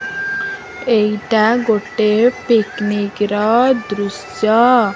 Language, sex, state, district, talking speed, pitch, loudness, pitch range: Odia, female, Odisha, Khordha, 85 wpm, 220 Hz, -16 LUFS, 210-245 Hz